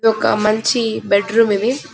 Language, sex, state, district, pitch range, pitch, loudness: Telugu, male, Telangana, Karimnagar, 210-230 Hz, 220 Hz, -16 LUFS